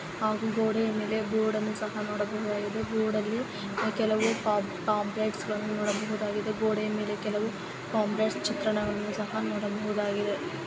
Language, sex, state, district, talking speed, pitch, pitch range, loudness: Kannada, female, Karnataka, Dharwad, 115 wpm, 215 Hz, 210-220 Hz, -30 LUFS